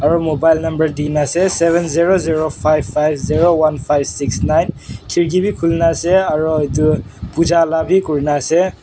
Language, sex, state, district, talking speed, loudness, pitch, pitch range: Nagamese, male, Nagaland, Kohima, 170 wpm, -15 LUFS, 160 Hz, 150-170 Hz